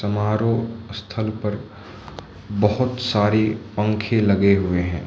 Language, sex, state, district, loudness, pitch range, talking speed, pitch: Hindi, male, Manipur, Imphal West, -21 LUFS, 100-110 Hz, 105 wpm, 105 Hz